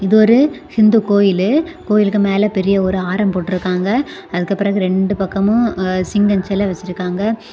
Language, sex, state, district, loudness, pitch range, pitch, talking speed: Tamil, female, Tamil Nadu, Kanyakumari, -15 LUFS, 185-215 Hz, 200 Hz, 125 wpm